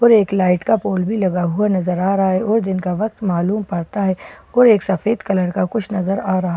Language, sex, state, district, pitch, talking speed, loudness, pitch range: Hindi, female, Bihar, Katihar, 195 Hz, 255 wpm, -18 LUFS, 185-210 Hz